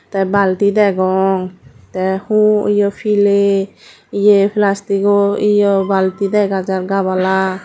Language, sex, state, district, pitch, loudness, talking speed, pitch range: Chakma, female, Tripura, Dhalai, 200 Hz, -14 LUFS, 110 wpm, 190-205 Hz